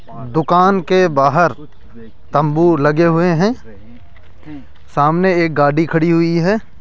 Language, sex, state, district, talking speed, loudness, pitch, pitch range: Hindi, male, Rajasthan, Jaipur, 115 wpm, -14 LUFS, 160 Hz, 130-175 Hz